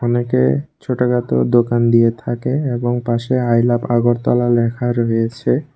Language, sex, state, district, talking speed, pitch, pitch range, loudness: Bengali, male, Tripura, West Tripura, 125 wpm, 120 Hz, 115-120 Hz, -17 LUFS